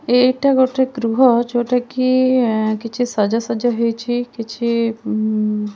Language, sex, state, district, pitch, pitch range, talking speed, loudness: Odia, female, Odisha, Khordha, 240 Hz, 225-250 Hz, 115 wpm, -17 LUFS